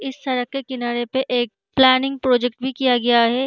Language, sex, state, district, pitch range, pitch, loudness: Hindi, female, Uttar Pradesh, Jyotiba Phule Nagar, 245-265 Hz, 255 Hz, -19 LUFS